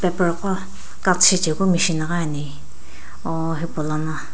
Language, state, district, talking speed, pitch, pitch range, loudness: Sumi, Nagaland, Dimapur, 125 wpm, 165 Hz, 155-180 Hz, -20 LUFS